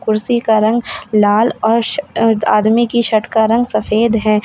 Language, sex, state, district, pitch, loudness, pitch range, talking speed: Hindi, female, Uttar Pradesh, Lalitpur, 220 Hz, -14 LUFS, 215-235 Hz, 175 wpm